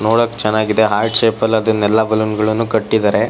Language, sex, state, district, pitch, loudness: Kannada, male, Karnataka, Shimoga, 110 Hz, -15 LUFS